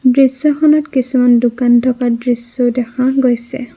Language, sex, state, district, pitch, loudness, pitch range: Assamese, female, Assam, Kamrup Metropolitan, 250 Hz, -13 LUFS, 245-265 Hz